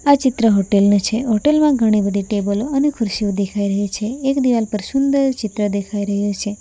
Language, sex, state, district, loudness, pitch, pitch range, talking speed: Gujarati, female, Gujarat, Valsad, -17 LUFS, 215 Hz, 200-260 Hz, 210 wpm